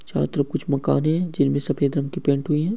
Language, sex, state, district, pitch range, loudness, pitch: Hindi, male, West Bengal, Malda, 140-160 Hz, -22 LUFS, 145 Hz